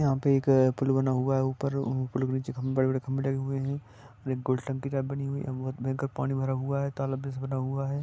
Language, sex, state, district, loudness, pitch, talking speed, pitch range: Magahi, male, Bihar, Gaya, -29 LUFS, 135 Hz, 180 wpm, 130-135 Hz